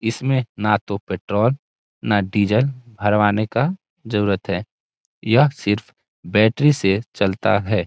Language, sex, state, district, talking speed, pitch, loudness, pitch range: Hindi, male, Bihar, Saran, 135 wpm, 105 Hz, -20 LUFS, 100-125 Hz